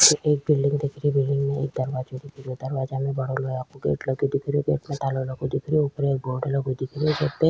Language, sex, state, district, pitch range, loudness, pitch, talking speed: Rajasthani, female, Rajasthan, Nagaur, 130-145 Hz, -25 LUFS, 140 Hz, 230 wpm